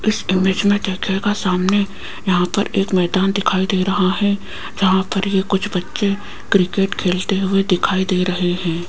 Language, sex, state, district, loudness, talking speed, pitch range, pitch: Hindi, female, Rajasthan, Jaipur, -18 LUFS, 170 wpm, 185-200 Hz, 190 Hz